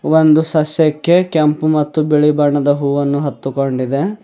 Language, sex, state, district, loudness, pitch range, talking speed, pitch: Kannada, male, Karnataka, Bidar, -14 LUFS, 145-155 Hz, 125 wpm, 150 Hz